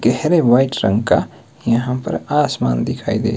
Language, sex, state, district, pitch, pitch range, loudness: Hindi, male, Himachal Pradesh, Shimla, 115 Hz, 90-125 Hz, -17 LUFS